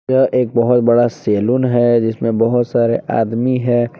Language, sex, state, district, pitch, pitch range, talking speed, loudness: Hindi, male, Jharkhand, Palamu, 120 Hz, 115-125 Hz, 165 wpm, -15 LUFS